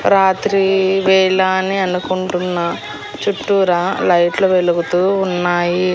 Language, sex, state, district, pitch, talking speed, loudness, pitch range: Telugu, female, Andhra Pradesh, Annamaya, 185 Hz, 80 wpm, -15 LUFS, 175-190 Hz